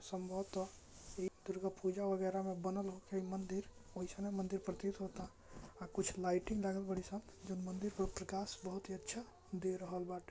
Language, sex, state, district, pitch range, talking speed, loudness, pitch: Bhojpuri, male, Bihar, Gopalganj, 185-195 Hz, 145 wpm, -43 LUFS, 190 Hz